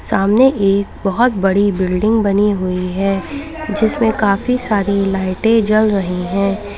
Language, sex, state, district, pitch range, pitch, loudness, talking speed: Hindi, female, Uttar Pradesh, Lalitpur, 195-220 Hz, 200 Hz, -15 LUFS, 135 wpm